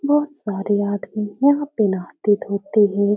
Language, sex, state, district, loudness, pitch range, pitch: Hindi, female, Uttar Pradesh, Etah, -20 LUFS, 200-265 Hz, 205 Hz